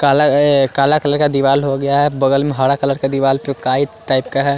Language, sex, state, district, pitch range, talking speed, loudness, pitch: Hindi, male, Chandigarh, Chandigarh, 135-145 Hz, 260 wpm, -15 LUFS, 140 Hz